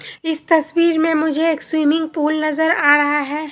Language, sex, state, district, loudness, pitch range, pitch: Hindi, female, Bihar, Katihar, -17 LUFS, 300-325 Hz, 315 Hz